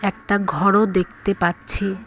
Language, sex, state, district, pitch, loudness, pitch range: Bengali, female, West Bengal, Cooch Behar, 195 Hz, -19 LUFS, 185-200 Hz